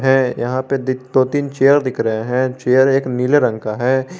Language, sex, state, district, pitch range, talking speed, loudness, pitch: Hindi, male, Jharkhand, Garhwa, 125-135 Hz, 200 wpm, -16 LUFS, 130 Hz